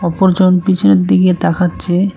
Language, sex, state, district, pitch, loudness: Bengali, male, West Bengal, Cooch Behar, 180 Hz, -12 LUFS